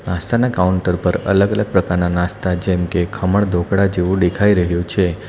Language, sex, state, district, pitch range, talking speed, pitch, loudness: Gujarati, male, Gujarat, Valsad, 90-100 Hz, 160 wpm, 90 Hz, -17 LUFS